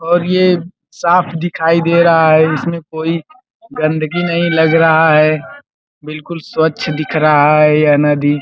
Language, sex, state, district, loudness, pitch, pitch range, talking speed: Hindi, male, Uttar Pradesh, Gorakhpur, -12 LUFS, 160 Hz, 155-170 Hz, 150 wpm